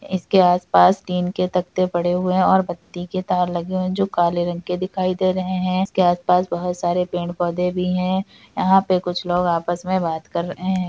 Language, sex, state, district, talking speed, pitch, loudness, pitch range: Hindi, female, Bihar, Kishanganj, 220 wpm, 180 Hz, -20 LUFS, 175-185 Hz